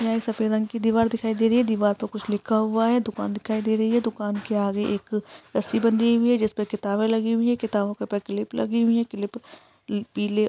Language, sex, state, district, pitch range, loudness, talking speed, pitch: Hindi, female, Uttar Pradesh, Etah, 210-230 Hz, -24 LUFS, 255 wpm, 220 Hz